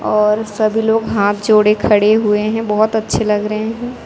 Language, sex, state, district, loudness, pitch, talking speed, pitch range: Hindi, female, Chhattisgarh, Raipur, -14 LUFS, 215 Hz, 195 wpm, 210-220 Hz